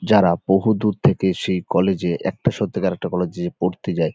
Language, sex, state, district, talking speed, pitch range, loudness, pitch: Bengali, male, West Bengal, North 24 Parganas, 190 wpm, 90-95 Hz, -20 LUFS, 90 Hz